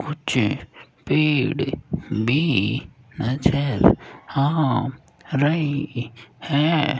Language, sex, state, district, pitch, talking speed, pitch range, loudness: Hindi, male, Rajasthan, Jaipur, 140 Hz, 60 wpm, 130-150 Hz, -22 LUFS